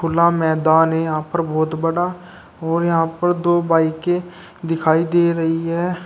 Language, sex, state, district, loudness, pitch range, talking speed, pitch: Hindi, male, Uttar Pradesh, Shamli, -18 LUFS, 160-175 Hz, 160 wpm, 165 Hz